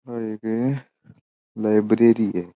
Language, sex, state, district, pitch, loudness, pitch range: Marwari, male, Rajasthan, Churu, 110 Hz, -21 LUFS, 105-115 Hz